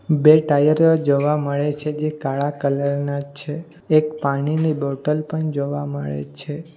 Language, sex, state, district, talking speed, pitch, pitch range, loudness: Gujarati, male, Gujarat, Valsad, 150 wpm, 150 Hz, 140-155 Hz, -20 LUFS